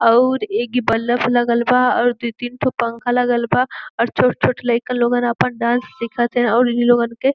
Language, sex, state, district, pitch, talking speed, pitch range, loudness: Bhojpuri, female, Uttar Pradesh, Gorakhpur, 240 Hz, 215 wpm, 235-250 Hz, -17 LUFS